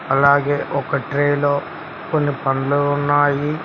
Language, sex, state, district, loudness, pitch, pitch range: Telugu, male, Telangana, Mahabubabad, -18 LUFS, 145 Hz, 140-145 Hz